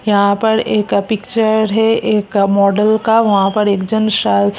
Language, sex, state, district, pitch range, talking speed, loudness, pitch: Hindi, female, Maharashtra, Chandrapur, 200-220 Hz, 195 wpm, -14 LUFS, 210 Hz